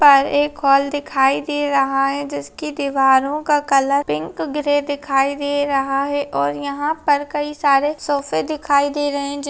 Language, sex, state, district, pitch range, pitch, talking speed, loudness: Hindi, female, Chhattisgarh, Kabirdham, 275-290 Hz, 285 Hz, 185 wpm, -18 LUFS